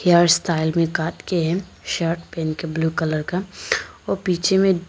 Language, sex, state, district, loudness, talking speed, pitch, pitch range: Hindi, female, Arunachal Pradesh, Papum Pare, -21 LUFS, 185 wpm, 170 Hz, 160-180 Hz